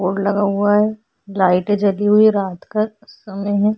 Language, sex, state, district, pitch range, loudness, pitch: Hindi, female, Goa, North and South Goa, 195-210 Hz, -17 LUFS, 205 Hz